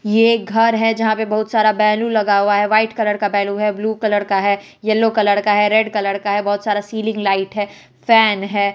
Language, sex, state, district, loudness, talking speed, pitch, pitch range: Hindi, female, Bihar, West Champaran, -16 LUFS, 240 wpm, 210 Hz, 205-220 Hz